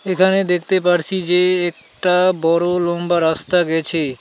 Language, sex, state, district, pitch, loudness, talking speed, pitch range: Bengali, male, West Bengal, Alipurduar, 175 Hz, -16 LUFS, 130 wpm, 165-185 Hz